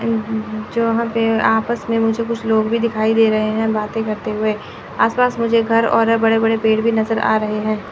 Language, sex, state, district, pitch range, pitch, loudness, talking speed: Hindi, female, Chandigarh, Chandigarh, 215-230 Hz, 225 Hz, -17 LUFS, 210 wpm